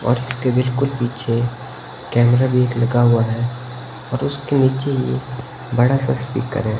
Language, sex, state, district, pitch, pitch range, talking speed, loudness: Hindi, male, Himachal Pradesh, Shimla, 125 Hz, 120-130 Hz, 165 wpm, -19 LUFS